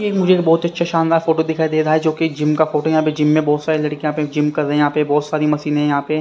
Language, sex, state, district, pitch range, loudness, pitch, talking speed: Hindi, male, Haryana, Rohtak, 150-160 Hz, -17 LUFS, 155 Hz, 355 wpm